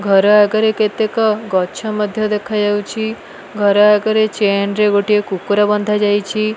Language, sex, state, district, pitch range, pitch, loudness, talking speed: Odia, female, Odisha, Malkangiri, 205-215 Hz, 210 Hz, -15 LUFS, 130 wpm